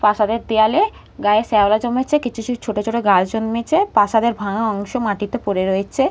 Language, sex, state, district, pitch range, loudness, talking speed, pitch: Bengali, female, West Bengal, Purulia, 205-235 Hz, -18 LUFS, 165 wpm, 220 Hz